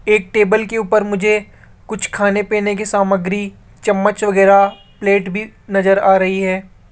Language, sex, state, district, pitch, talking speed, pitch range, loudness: Hindi, male, Rajasthan, Jaipur, 205 Hz, 155 wpm, 195-215 Hz, -15 LUFS